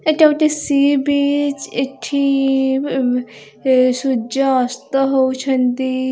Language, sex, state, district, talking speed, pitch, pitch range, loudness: Odia, female, Odisha, Khordha, 135 wpm, 270 Hz, 260-280 Hz, -17 LUFS